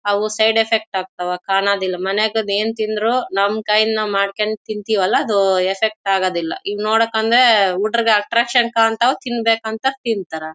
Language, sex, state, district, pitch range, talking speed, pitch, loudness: Kannada, female, Karnataka, Bellary, 195-225 Hz, 125 wpm, 215 Hz, -17 LUFS